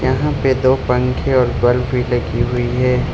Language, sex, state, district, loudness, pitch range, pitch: Hindi, male, Arunachal Pradesh, Lower Dibang Valley, -16 LUFS, 120-130 Hz, 125 Hz